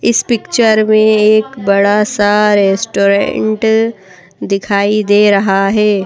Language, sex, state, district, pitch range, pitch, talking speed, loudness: Hindi, female, Madhya Pradesh, Bhopal, 200-215 Hz, 210 Hz, 110 wpm, -11 LUFS